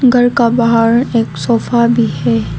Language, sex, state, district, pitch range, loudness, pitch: Hindi, female, Arunachal Pradesh, Lower Dibang Valley, 230-235 Hz, -12 LUFS, 235 Hz